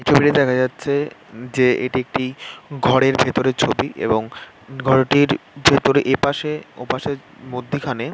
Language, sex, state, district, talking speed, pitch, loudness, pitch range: Bengali, male, West Bengal, North 24 Parganas, 110 wpm, 130 Hz, -19 LUFS, 125-145 Hz